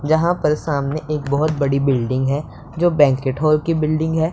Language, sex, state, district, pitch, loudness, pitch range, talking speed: Hindi, male, Punjab, Pathankot, 150 Hz, -18 LUFS, 140-160 Hz, 195 wpm